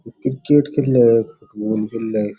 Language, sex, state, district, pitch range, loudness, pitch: Rajasthani, male, Rajasthan, Churu, 110-135 Hz, -18 LUFS, 115 Hz